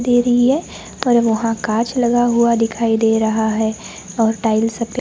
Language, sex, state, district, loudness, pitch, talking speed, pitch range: Hindi, male, Maharashtra, Gondia, -17 LUFS, 230 Hz, 190 wpm, 220-240 Hz